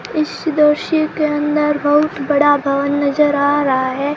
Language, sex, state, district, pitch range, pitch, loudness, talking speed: Hindi, female, Rajasthan, Jaisalmer, 285-300 Hz, 295 Hz, -15 LUFS, 160 wpm